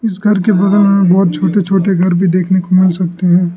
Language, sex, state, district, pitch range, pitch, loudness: Hindi, male, Arunachal Pradesh, Lower Dibang Valley, 180-200 Hz, 185 Hz, -12 LUFS